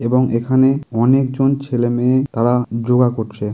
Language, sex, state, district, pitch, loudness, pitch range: Bengali, male, West Bengal, Kolkata, 125 Hz, -16 LUFS, 115-130 Hz